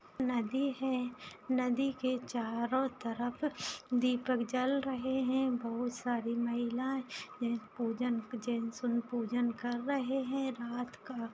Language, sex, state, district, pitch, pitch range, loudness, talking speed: Hindi, female, Bihar, Saharsa, 245 Hz, 235-260 Hz, -35 LUFS, 105 wpm